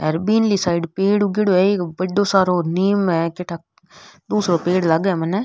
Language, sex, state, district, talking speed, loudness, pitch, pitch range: Rajasthani, female, Rajasthan, Nagaur, 200 wpm, -18 LUFS, 185 Hz, 170-200 Hz